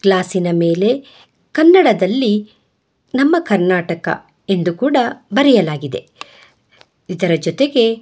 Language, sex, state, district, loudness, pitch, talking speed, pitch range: Kannada, female, Karnataka, Bangalore, -15 LUFS, 205 Hz, 75 wpm, 175-260 Hz